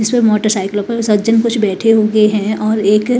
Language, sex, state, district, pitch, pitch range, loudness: Hindi, female, Bihar, West Champaran, 215 Hz, 210-225 Hz, -13 LUFS